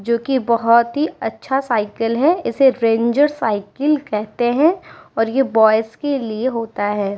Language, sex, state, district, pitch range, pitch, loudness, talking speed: Hindi, female, Uttar Pradesh, Muzaffarnagar, 225-275 Hz, 235 Hz, -17 LUFS, 160 wpm